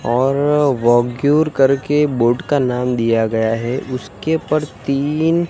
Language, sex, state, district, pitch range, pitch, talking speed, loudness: Hindi, male, Gujarat, Gandhinagar, 120-150 Hz, 135 Hz, 130 wpm, -17 LUFS